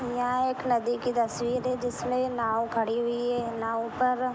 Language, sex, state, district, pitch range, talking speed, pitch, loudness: Hindi, female, Jharkhand, Jamtara, 230-250 Hz, 195 wpm, 245 Hz, -28 LUFS